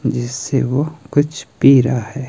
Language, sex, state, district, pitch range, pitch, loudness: Hindi, male, Himachal Pradesh, Shimla, 125-145 Hz, 135 Hz, -16 LUFS